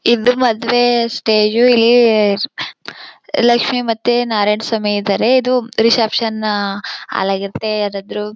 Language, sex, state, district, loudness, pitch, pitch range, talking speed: Kannada, female, Karnataka, Chamarajanagar, -15 LUFS, 225 Hz, 210-240 Hz, 95 wpm